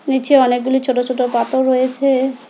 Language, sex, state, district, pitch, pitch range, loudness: Bengali, female, West Bengal, Alipurduar, 260 Hz, 255-265 Hz, -15 LUFS